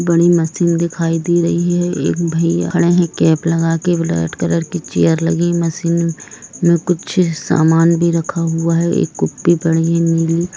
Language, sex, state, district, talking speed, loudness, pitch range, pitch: Hindi, female, Jharkhand, Jamtara, 170 wpm, -15 LUFS, 165-170 Hz, 170 Hz